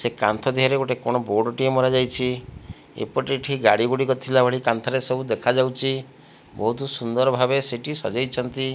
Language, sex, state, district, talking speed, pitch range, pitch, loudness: Odia, male, Odisha, Malkangiri, 150 wpm, 125-135 Hz, 130 Hz, -22 LUFS